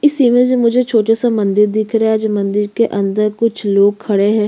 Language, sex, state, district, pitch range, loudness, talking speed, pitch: Hindi, female, Chhattisgarh, Kabirdham, 205-235 Hz, -14 LUFS, 225 wpm, 215 Hz